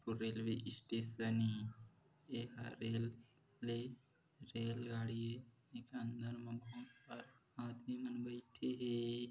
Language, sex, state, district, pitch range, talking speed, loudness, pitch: Hindi, male, Chhattisgarh, Korba, 115-120 Hz, 135 wpm, -45 LUFS, 120 Hz